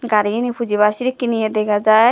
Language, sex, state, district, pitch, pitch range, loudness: Chakma, female, Tripura, Dhalai, 220 Hz, 210-240 Hz, -17 LUFS